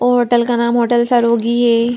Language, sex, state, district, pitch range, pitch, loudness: Magahi, female, Bihar, Gaya, 235-240 Hz, 240 Hz, -14 LUFS